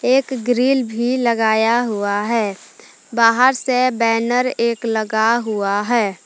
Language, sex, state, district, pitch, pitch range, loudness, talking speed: Hindi, female, Jharkhand, Palamu, 235 Hz, 220-250 Hz, -17 LUFS, 135 wpm